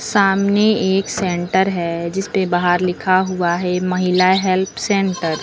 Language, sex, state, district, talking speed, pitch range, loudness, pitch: Hindi, female, Uttar Pradesh, Lucknow, 145 wpm, 175-195 Hz, -17 LUFS, 185 Hz